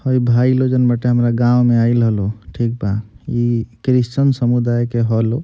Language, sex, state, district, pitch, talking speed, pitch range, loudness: Bhojpuri, male, Bihar, Gopalganj, 120 Hz, 200 wpm, 115-125 Hz, -16 LUFS